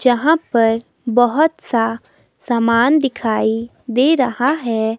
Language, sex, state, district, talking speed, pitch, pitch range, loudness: Hindi, female, Himachal Pradesh, Shimla, 110 wpm, 240 Hz, 230-275 Hz, -16 LUFS